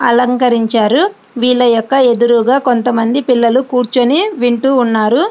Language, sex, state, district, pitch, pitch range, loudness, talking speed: Telugu, female, Andhra Pradesh, Srikakulam, 245 Hz, 235-260 Hz, -12 LUFS, 100 wpm